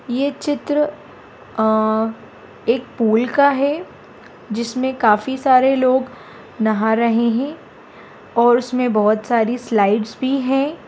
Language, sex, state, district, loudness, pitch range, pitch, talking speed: Bhojpuri, female, Bihar, Saran, -18 LUFS, 220-270 Hz, 245 Hz, 115 wpm